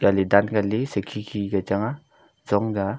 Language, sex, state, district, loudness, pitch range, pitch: Wancho, male, Arunachal Pradesh, Longding, -23 LUFS, 100-110 Hz, 100 Hz